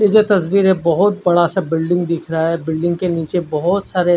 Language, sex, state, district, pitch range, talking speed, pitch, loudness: Hindi, male, Odisha, Khordha, 165-190 Hz, 230 wpm, 175 Hz, -16 LUFS